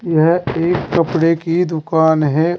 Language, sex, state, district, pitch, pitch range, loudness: Hindi, male, Uttar Pradesh, Saharanpur, 165 Hz, 160-170 Hz, -15 LUFS